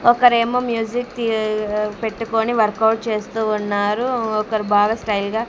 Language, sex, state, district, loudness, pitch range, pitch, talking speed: Telugu, female, Andhra Pradesh, Sri Satya Sai, -19 LUFS, 210-230 Hz, 220 Hz, 120 wpm